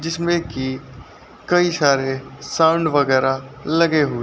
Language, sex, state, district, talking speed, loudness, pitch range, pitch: Hindi, male, Uttar Pradesh, Lucknow, 130 wpm, -19 LUFS, 130-165 Hz, 145 Hz